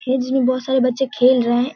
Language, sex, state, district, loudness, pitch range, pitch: Hindi, female, Bihar, Kishanganj, -17 LUFS, 250-265 Hz, 255 Hz